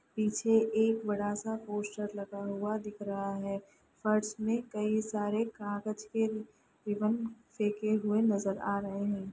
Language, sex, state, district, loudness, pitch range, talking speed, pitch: Hindi, female, Chhattisgarh, Raigarh, -33 LUFS, 205-220 Hz, 150 wpm, 210 Hz